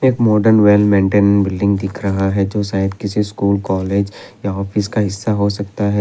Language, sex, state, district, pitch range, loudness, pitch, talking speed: Hindi, male, Assam, Kamrup Metropolitan, 100-105 Hz, -16 LUFS, 100 Hz, 200 wpm